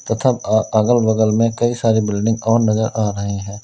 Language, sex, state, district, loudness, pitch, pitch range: Hindi, male, Uttar Pradesh, Lalitpur, -17 LUFS, 110 Hz, 110-115 Hz